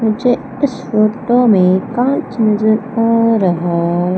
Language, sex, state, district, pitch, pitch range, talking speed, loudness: Hindi, female, Madhya Pradesh, Umaria, 225 Hz, 195-245 Hz, 115 wpm, -14 LUFS